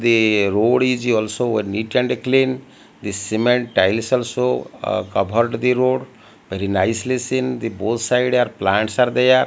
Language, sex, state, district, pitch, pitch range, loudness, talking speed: English, male, Odisha, Malkangiri, 120 Hz, 110-125 Hz, -19 LUFS, 160 wpm